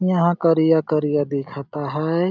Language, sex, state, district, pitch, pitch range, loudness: Sadri, male, Chhattisgarh, Jashpur, 160 Hz, 145-170 Hz, -20 LUFS